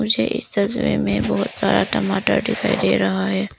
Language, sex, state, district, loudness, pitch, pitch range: Hindi, female, Arunachal Pradesh, Papum Pare, -20 LUFS, 95 Hz, 95-100 Hz